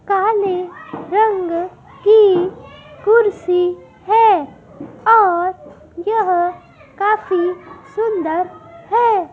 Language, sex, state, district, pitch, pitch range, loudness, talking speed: Hindi, female, Madhya Pradesh, Dhar, 380 Hz, 360-430 Hz, -16 LUFS, 60 wpm